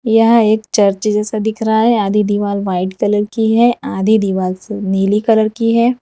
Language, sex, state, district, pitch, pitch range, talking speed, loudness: Hindi, female, Gujarat, Valsad, 215 Hz, 205-225 Hz, 200 wpm, -14 LUFS